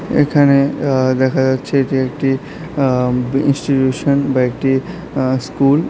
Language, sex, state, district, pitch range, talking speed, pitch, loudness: Bengali, male, Tripura, South Tripura, 130-140 Hz, 130 wpm, 135 Hz, -16 LUFS